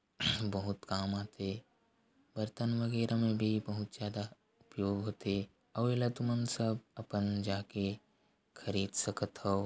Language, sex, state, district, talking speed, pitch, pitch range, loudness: Chhattisgarhi, male, Chhattisgarh, Korba, 125 wpm, 105 Hz, 100-115 Hz, -36 LUFS